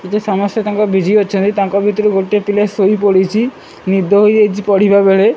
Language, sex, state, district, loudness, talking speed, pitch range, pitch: Odia, male, Odisha, Malkangiri, -13 LUFS, 155 wpm, 195-210 Hz, 205 Hz